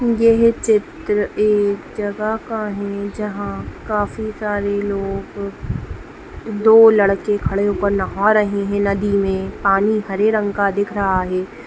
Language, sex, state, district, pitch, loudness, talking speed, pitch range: Hindi, female, Bihar, Saharsa, 205 Hz, -18 LUFS, 135 wpm, 200-215 Hz